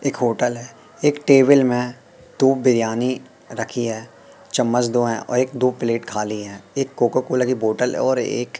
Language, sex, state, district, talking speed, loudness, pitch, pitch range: Hindi, male, Madhya Pradesh, Katni, 190 wpm, -20 LUFS, 125 Hz, 115-130 Hz